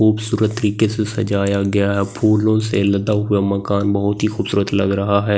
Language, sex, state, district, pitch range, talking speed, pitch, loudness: Hindi, male, Delhi, New Delhi, 100-110 Hz, 180 wpm, 100 Hz, -18 LUFS